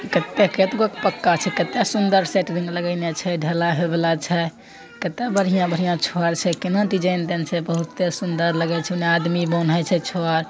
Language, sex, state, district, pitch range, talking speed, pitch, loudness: Angika, male, Bihar, Begusarai, 170-185 Hz, 185 wpm, 175 Hz, -21 LUFS